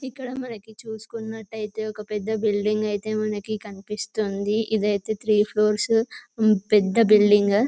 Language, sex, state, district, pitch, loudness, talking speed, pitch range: Telugu, female, Telangana, Karimnagar, 215 Hz, -23 LUFS, 135 wpm, 210-220 Hz